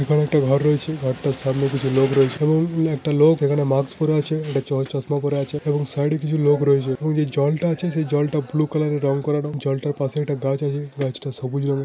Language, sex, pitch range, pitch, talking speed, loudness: Bengali, male, 140-150 Hz, 145 Hz, 260 wpm, -21 LUFS